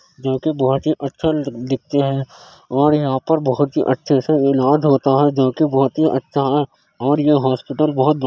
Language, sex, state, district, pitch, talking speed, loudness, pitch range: Hindi, male, Uttar Pradesh, Jyotiba Phule Nagar, 140 Hz, 215 wpm, -17 LUFS, 130-150 Hz